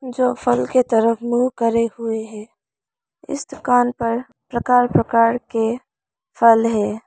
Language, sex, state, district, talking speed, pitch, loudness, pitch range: Hindi, female, Arunachal Pradesh, Lower Dibang Valley, 135 wpm, 230 Hz, -18 LUFS, 230-245 Hz